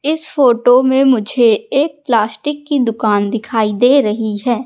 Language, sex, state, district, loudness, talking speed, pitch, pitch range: Hindi, female, Madhya Pradesh, Katni, -14 LUFS, 155 wpm, 245 Hz, 220-280 Hz